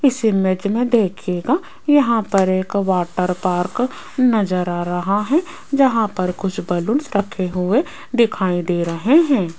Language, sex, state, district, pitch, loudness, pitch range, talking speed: Hindi, female, Rajasthan, Jaipur, 200 Hz, -18 LUFS, 180-250 Hz, 145 wpm